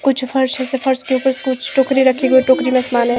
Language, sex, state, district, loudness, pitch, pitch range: Hindi, female, Himachal Pradesh, Shimla, -15 LUFS, 260 Hz, 255-265 Hz